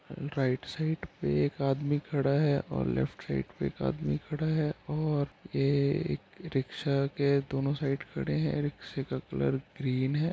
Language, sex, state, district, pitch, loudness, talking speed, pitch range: Hindi, male, Bihar, Gopalganj, 140 Hz, -31 LUFS, 170 wpm, 135-150 Hz